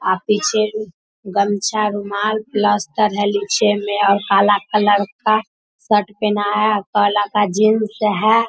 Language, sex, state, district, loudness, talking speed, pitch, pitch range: Hindi, female, Bihar, Samastipur, -17 LUFS, 150 wpm, 210 Hz, 205-215 Hz